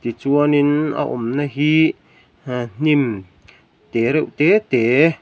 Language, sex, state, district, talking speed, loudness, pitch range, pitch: Mizo, male, Mizoram, Aizawl, 115 wpm, -18 LUFS, 120-150 Hz, 140 Hz